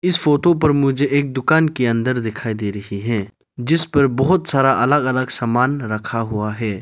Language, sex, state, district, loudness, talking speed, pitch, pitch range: Hindi, male, Arunachal Pradesh, Lower Dibang Valley, -18 LUFS, 195 wpm, 130 Hz, 115-145 Hz